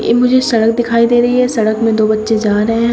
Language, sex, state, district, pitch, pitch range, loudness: Hindi, female, Uttar Pradesh, Shamli, 230 Hz, 220-240 Hz, -12 LUFS